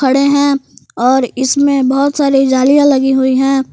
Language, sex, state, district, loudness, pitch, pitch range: Hindi, female, Jharkhand, Palamu, -12 LUFS, 270 Hz, 265-280 Hz